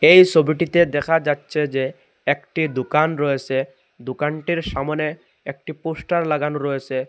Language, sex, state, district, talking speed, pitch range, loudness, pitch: Bengali, male, Assam, Hailakandi, 120 wpm, 140-160 Hz, -20 LUFS, 150 Hz